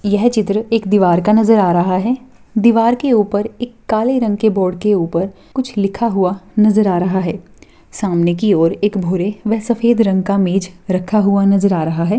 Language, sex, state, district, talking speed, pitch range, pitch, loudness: Hindi, female, Maharashtra, Nagpur, 205 wpm, 185-220 Hz, 205 Hz, -15 LUFS